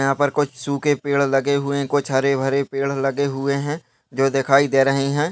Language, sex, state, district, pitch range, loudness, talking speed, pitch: Hindi, male, Maharashtra, Pune, 135-140 Hz, -20 LUFS, 215 wpm, 140 Hz